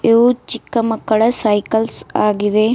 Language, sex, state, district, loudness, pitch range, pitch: Kannada, female, Karnataka, Bidar, -15 LUFS, 215-230 Hz, 225 Hz